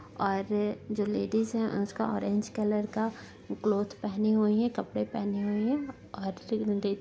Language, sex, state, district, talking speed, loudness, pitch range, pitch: Hindi, female, Bihar, Sitamarhi, 155 wpm, -31 LUFS, 200-220 Hz, 210 Hz